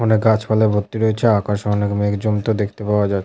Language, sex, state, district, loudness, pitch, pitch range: Bengali, male, West Bengal, Jalpaiguri, -18 LUFS, 105 Hz, 105-110 Hz